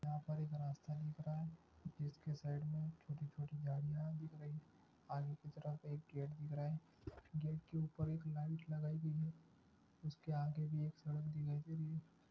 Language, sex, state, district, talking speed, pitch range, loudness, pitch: Hindi, male, Andhra Pradesh, Krishna, 180 wpm, 150-155 Hz, -46 LUFS, 155 Hz